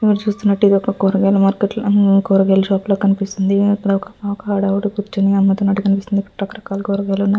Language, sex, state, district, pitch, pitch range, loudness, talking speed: Telugu, female, Andhra Pradesh, Visakhapatnam, 200 Hz, 195-205 Hz, -16 LUFS, 180 wpm